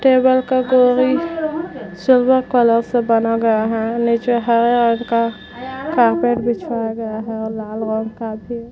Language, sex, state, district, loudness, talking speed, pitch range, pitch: Hindi, female, Bihar, Vaishali, -17 LUFS, 150 wpm, 225-255 Hz, 235 Hz